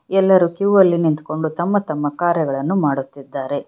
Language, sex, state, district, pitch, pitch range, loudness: Kannada, female, Karnataka, Bangalore, 170 Hz, 150-190 Hz, -18 LUFS